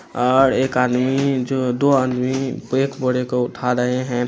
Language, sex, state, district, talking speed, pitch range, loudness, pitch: Hindi, male, Bihar, Araria, 170 wpm, 125-135 Hz, -19 LUFS, 125 Hz